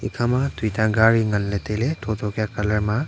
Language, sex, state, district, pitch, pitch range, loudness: Wancho, male, Arunachal Pradesh, Longding, 110 Hz, 105-120 Hz, -22 LUFS